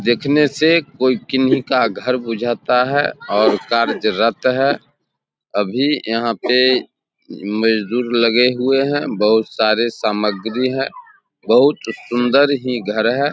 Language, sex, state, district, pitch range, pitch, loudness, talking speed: Hindi, male, Bihar, Samastipur, 115-135 Hz, 125 Hz, -17 LUFS, 120 wpm